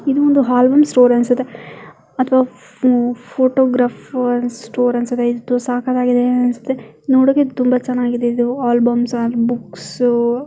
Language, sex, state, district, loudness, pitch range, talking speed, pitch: Kannada, female, Karnataka, Mysore, -16 LUFS, 240-255 Hz, 125 wpm, 245 Hz